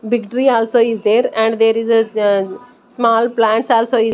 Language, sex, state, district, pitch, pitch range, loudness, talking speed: English, female, Chandigarh, Chandigarh, 225 Hz, 220-240 Hz, -15 LUFS, 215 wpm